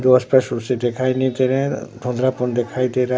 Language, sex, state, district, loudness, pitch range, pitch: Hindi, male, Bihar, Katihar, -19 LUFS, 125-130 Hz, 130 Hz